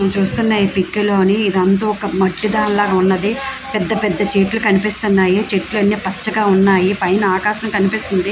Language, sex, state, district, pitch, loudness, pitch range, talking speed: Telugu, female, Andhra Pradesh, Visakhapatnam, 200 Hz, -15 LUFS, 190-210 Hz, 160 wpm